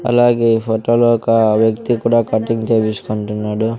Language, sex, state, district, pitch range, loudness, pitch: Telugu, male, Andhra Pradesh, Sri Satya Sai, 110-115 Hz, -15 LUFS, 115 Hz